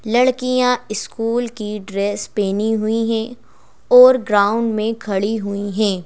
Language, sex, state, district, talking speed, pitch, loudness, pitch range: Hindi, female, Madhya Pradesh, Bhopal, 130 wpm, 220 Hz, -17 LUFS, 205-235 Hz